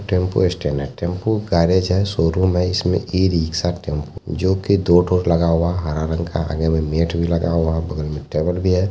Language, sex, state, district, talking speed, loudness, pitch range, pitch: Maithili, male, Bihar, Begusarai, 210 wpm, -19 LUFS, 80-90 Hz, 85 Hz